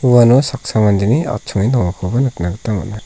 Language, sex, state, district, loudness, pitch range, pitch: Garo, male, Meghalaya, South Garo Hills, -15 LUFS, 100-125 Hz, 110 Hz